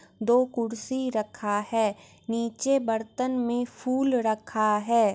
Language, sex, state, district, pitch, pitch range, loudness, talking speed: Maithili, female, Bihar, Muzaffarpur, 230 Hz, 215-255 Hz, -27 LUFS, 115 wpm